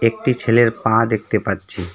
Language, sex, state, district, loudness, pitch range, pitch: Bengali, male, West Bengal, Darjeeling, -17 LUFS, 100-115 Hz, 110 Hz